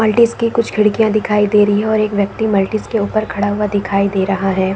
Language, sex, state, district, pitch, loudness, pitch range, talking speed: Hindi, female, Chhattisgarh, Raigarh, 210 Hz, -15 LUFS, 200-215 Hz, 250 wpm